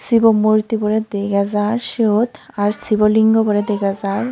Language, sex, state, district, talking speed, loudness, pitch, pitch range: Chakma, female, Tripura, Unakoti, 165 wpm, -17 LUFS, 215 Hz, 205-225 Hz